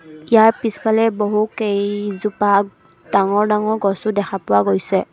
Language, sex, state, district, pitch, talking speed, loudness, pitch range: Assamese, female, Assam, Kamrup Metropolitan, 205 Hz, 115 wpm, -17 LUFS, 200-215 Hz